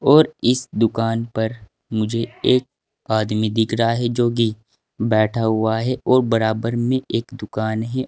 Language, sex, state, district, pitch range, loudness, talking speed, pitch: Hindi, male, Uttar Pradesh, Saharanpur, 110-120 Hz, -20 LUFS, 150 wpm, 115 Hz